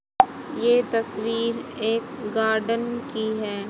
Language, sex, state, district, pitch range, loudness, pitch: Hindi, female, Haryana, Jhajjar, 220-235 Hz, -24 LUFS, 230 Hz